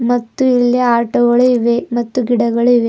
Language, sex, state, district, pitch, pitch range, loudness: Kannada, female, Karnataka, Bidar, 240 Hz, 235-245 Hz, -14 LUFS